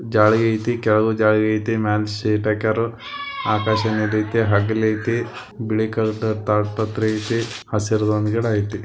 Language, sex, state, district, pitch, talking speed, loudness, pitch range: Kannada, male, Karnataka, Belgaum, 110 Hz, 140 wpm, -20 LUFS, 105-115 Hz